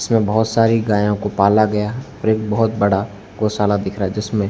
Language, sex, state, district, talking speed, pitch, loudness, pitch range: Hindi, male, Rajasthan, Barmer, 215 wpm, 105 Hz, -18 LUFS, 100-110 Hz